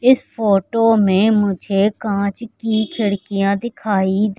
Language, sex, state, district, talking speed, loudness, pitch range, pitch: Hindi, female, Madhya Pradesh, Katni, 110 wpm, -17 LUFS, 200-225 Hz, 205 Hz